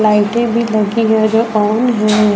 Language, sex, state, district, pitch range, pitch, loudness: Hindi, female, Jharkhand, Deoghar, 210-230 Hz, 220 Hz, -13 LUFS